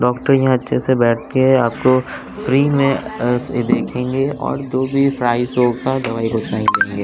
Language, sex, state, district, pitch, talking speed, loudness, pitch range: Hindi, male, Bihar, West Champaran, 130 Hz, 160 wpm, -17 LUFS, 120-135 Hz